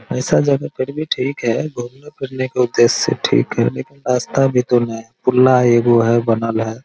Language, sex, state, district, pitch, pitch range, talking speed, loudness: Hindi, male, Bihar, Araria, 125 Hz, 115-130 Hz, 200 wpm, -16 LUFS